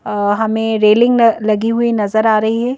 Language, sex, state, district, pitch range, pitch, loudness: Hindi, female, Madhya Pradesh, Bhopal, 215-230 Hz, 220 Hz, -13 LUFS